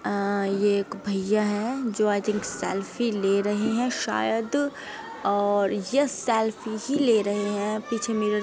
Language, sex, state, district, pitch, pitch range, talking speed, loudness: Hindi, female, Uttar Pradesh, Hamirpur, 210 Hz, 200-230 Hz, 155 wpm, -25 LUFS